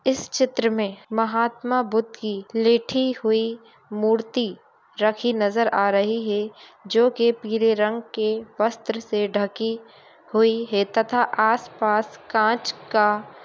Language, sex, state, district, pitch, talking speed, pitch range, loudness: Hindi, female, Uttar Pradesh, Gorakhpur, 225 Hz, 130 wpm, 215-230 Hz, -22 LUFS